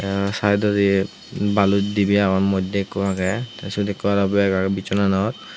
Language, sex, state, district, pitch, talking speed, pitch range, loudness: Chakma, male, Tripura, Unakoti, 100 Hz, 160 wpm, 95-100 Hz, -20 LUFS